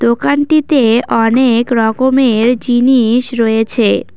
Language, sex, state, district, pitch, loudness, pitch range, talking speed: Bengali, female, West Bengal, Cooch Behar, 240 Hz, -11 LUFS, 230-260 Hz, 70 wpm